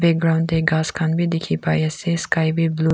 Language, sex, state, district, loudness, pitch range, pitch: Nagamese, female, Nagaland, Kohima, -20 LUFS, 160-165 Hz, 160 Hz